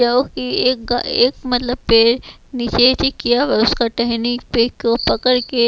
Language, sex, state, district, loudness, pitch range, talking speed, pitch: Hindi, female, Chhattisgarh, Raipur, -16 LUFS, 235-250 Hz, 170 wpm, 245 Hz